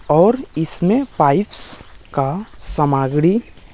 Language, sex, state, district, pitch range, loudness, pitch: Hindi, male, Bihar, West Champaran, 150-225 Hz, -18 LUFS, 175 Hz